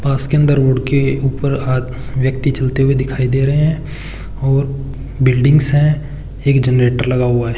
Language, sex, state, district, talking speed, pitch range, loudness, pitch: Hindi, male, Rajasthan, Churu, 175 wpm, 130-140 Hz, -15 LUFS, 135 Hz